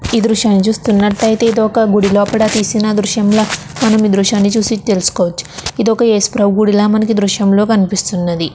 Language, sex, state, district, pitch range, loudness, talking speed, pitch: Telugu, female, Andhra Pradesh, Chittoor, 200-220 Hz, -13 LUFS, 145 wpm, 210 Hz